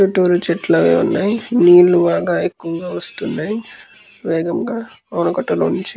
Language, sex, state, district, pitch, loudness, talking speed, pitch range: Telugu, male, Andhra Pradesh, Krishna, 180 Hz, -16 LUFS, 110 wpm, 170-215 Hz